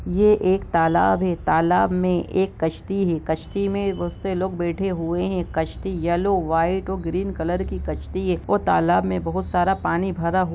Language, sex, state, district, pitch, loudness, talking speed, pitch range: Hindi, male, Jharkhand, Jamtara, 180 Hz, -22 LUFS, 190 wpm, 170-190 Hz